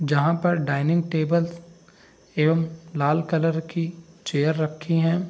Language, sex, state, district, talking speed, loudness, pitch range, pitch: Hindi, male, Bihar, Saharsa, 125 wpm, -24 LUFS, 155-170 Hz, 165 Hz